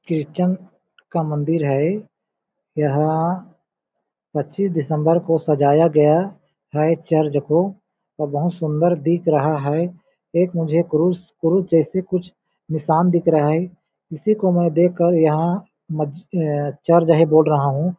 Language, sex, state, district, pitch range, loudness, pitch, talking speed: Hindi, male, Chhattisgarh, Balrampur, 155-180 Hz, -19 LUFS, 165 Hz, 135 wpm